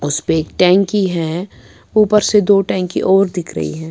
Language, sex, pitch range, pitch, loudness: Urdu, female, 160-200 Hz, 185 Hz, -15 LUFS